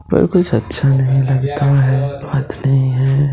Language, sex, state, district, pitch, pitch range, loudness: Hindi, male, Bihar, Gopalganj, 135 Hz, 135-140 Hz, -15 LUFS